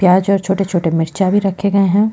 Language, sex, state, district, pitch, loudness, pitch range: Hindi, female, Chhattisgarh, Jashpur, 195 Hz, -15 LUFS, 185-200 Hz